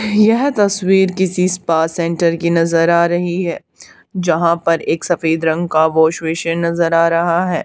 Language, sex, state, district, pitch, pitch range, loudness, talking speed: Hindi, female, Haryana, Charkhi Dadri, 170 Hz, 165-180 Hz, -15 LUFS, 170 wpm